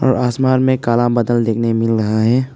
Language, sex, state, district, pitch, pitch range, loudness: Hindi, male, Arunachal Pradesh, Papum Pare, 120 Hz, 115-130 Hz, -15 LUFS